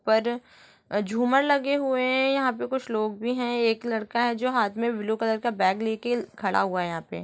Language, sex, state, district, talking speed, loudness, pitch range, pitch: Hindi, female, Chhattisgarh, Rajnandgaon, 225 wpm, -25 LUFS, 215-250 Hz, 235 Hz